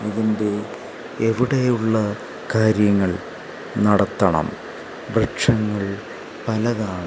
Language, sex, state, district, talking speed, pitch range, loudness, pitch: Malayalam, male, Kerala, Kasaragod, 60 wpm, 105-110 Hz, -21 LUFS, 110 Hz